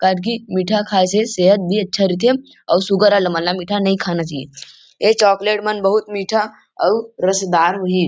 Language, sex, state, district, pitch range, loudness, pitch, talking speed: Chhattisgarhi, male, Chhattisgarh, Rajnandgaon, 185-210 Hz, -17 LUFS, 195 Hz, 185 wpm